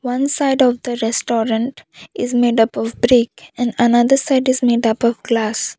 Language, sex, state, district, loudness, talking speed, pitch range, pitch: English, female, Assam, Kamrup Metropolitan, -17 LUFS, 185 wpm, 230-255 Hz, 240 Hz